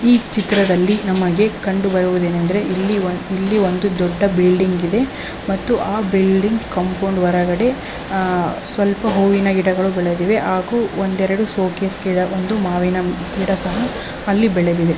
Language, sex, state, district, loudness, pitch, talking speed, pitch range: Kannada, female, Karnataka, Belgaum, -17 LUFS, 190 Hz, 110 wpm, 180-205 Hz